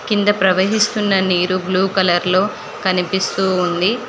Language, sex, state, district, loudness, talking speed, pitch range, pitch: Telugu, female, Telangana, Mahabubabad, -16 LUFS, 115 wpm, 185-205 Hz, 190 Hz